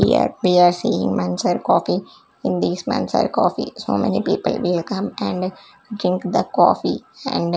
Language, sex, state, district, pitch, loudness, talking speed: English, female, Chandigarh, Chandigarh, 180 Hz, -20 LUFS, 165 wpm